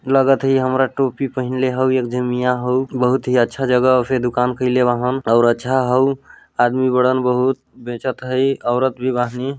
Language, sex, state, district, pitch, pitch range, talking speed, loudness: Hindi, male, Chhattisgarh, Balrampur, 130 Hz, 125-130 Hz, 180 wpm, -17 LUFS